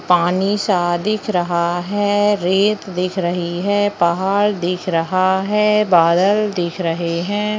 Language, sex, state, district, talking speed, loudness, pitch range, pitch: Hindi, female, Maharashtra, Chandrapur, 135 wpm, -17 LUFS, 175-205 Hz, 185 Hz